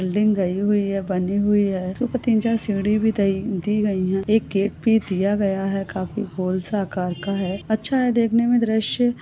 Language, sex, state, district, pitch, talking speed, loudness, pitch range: Hindi, female, Jharkhand, Jamtara, 205 Hz, 210 wpm, -21 LUFS, 190-220 Hz